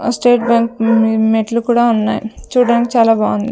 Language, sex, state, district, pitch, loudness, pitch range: Telugu, female, Andhra Pradesh, Sri Satya Sai, 230 Hz, -14 LUFS, 220-240 Hz